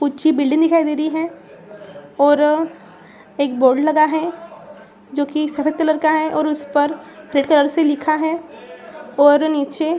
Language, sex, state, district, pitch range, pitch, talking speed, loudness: Hindi, female, Bihar, Saran, 290-315 Hz, 305 Hz, 175 wpm, -17 LUFS